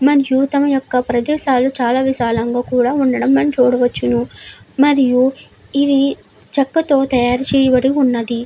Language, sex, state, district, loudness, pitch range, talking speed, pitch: Telugu, female, Andhra Pradesh, Chittoor, -15 LUFS, 245-275 Hz, 105 wpm, 260 Hz